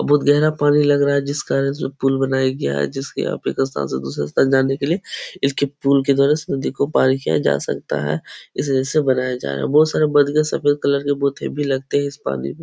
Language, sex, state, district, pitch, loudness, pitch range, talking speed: Hindi, male, Uttar Pradesh, Etah, 140 Hz, -19 LUFS, 130-145 Hz, 260 wpm